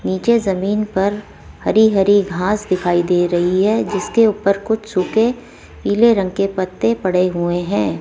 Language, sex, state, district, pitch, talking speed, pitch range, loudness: Hindi, female, Rajasthan, Jaipur, 195 Hz, 155 wpm, 185-220 Hz, -17 LUFS